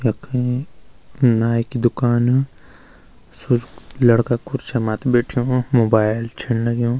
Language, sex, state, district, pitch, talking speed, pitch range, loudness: Garhwali, male, Uttarakhand, Uttarkashi, 120 Hz, 105 wpm, 115-125 Hz, -19 LUFS